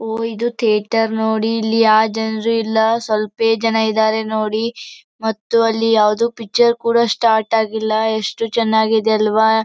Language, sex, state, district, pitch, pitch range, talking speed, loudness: Kannada, female, Karnataka, Gulbarga, 220 Hz, 220-225 Hz, 135 wpm, -16 LUFS